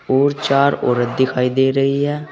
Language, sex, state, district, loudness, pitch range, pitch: Hindi, male, Uttar Pradesh, Saharanpur, -17 LUFS, 130-140 Hz, 135 Hz